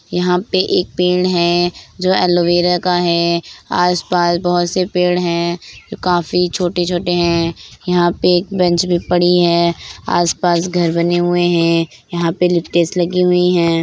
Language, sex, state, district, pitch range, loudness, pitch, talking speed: Hindi, female, Bihar, Bhagalpur, 170-180 Hz, -15 LUFS, 175 Hz, 150 wpm